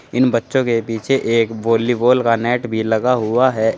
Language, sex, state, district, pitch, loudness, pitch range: Hindi, male, Uttar Pradesh, Saharanpur, 115 Hz, -17 LUFS, 115-125 Hz